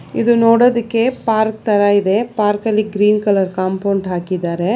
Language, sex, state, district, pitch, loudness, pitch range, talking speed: Kannada, female, Karnataka, Bangalore, 210 Hz, -15 LUFS, 195-225 Hz, 140 wpm